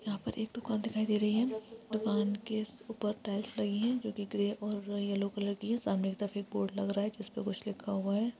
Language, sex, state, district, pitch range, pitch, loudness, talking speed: Hindi, female, Chhattisgarh, Sukma, 205-220 Hz, 210 Hz, -35 LUFS, 250 wpm